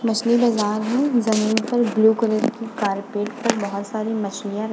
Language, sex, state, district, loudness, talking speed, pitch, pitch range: Hindi, female, Uttar Pradesh, Muzaffarnagar, -21 LUFS, 190 wpm, 220 Hz, 210-235 Hz